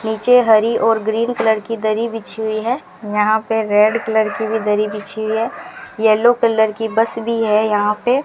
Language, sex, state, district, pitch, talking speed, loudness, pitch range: Hindi, female, Rajasthan, Bikaner, 220 Hz, 195 wpm, -17 LUFS, 215-230 Hz